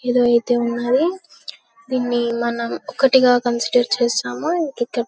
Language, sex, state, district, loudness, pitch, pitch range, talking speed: Telugu, female, Telangana, Karimnagar, -19 LUFS, 245 Hz, 235-260 Hz, 120 wpm